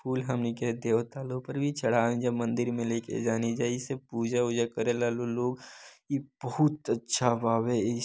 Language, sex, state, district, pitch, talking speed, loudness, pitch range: Bhojpuri, male, Bihar, Gopalganj, 120 Hz, 155 wpm, -30 LUFS, 115-130 Hz